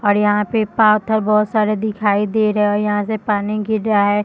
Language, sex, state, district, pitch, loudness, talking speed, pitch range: Hindi, female, Bihar, Bhagalpur, 210 Hz, -17 LUFS, 225 wpm, 205-215 Hz